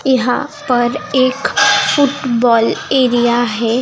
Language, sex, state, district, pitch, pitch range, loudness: Hindi, female, Bihar, Begusarai, 255 Hz, 240-285 Hz, -14 LUFS